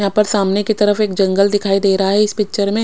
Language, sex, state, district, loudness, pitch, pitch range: Hindi, female, Odisha, Khordha, -15 LUFS, 205 Hz, 195-210 Hz